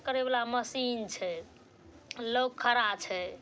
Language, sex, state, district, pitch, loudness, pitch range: Maithili, female, Bihar, Saharsa, 245 Hz, -31 LUFS, 230-255 Hz